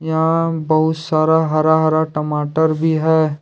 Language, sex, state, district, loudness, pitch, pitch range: Hindi, male, Jharkhand, Deoghar, -16 LUFS, 160 Hz, 155-160 Hz